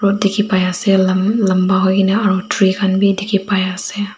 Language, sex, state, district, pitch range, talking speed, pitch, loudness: Nagamese, female, Nagaland, Dimapur, 190-205 Hz, 215 wpm, 195 Hz, -15 LUFS